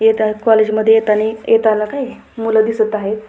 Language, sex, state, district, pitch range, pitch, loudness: Marathi, female, Maharashtra, Pune, 215-225 Hz, 220 Hz, -15 LUFS